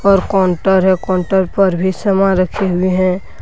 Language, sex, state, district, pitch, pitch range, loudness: Hindi, male, Jharkhand, Deoghar, 190 Hz, 185-195 Hz, -14 LUFS